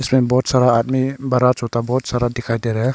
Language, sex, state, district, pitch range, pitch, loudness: Hindi, male, Arunachal Pradesh, Longding, 120-130 Hz, 125 Hz, -18 LUFS